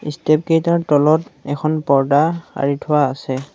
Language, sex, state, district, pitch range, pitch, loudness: Assamese, male, Assam, Sonitpur, 140-155 Hz, 150 Hz, -17 LUFS